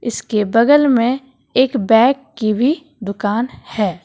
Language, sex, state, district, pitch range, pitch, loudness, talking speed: Hindi, female, Jharkhand, Deoghar, 215-265 Hz, 235 Hz, -16 LUFS, 135 wpm